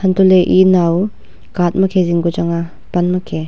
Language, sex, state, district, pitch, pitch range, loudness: Wancho, female, Arunachal Pradesh, Longding, 180 Hz, 170-185 Hz, -14 LUFS